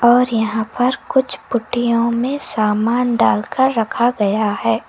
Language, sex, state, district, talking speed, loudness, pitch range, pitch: Hindi, female, Karnataka, Koppal, 135 wpm, -17 LUFS, 215-245 Hz, 235 Hz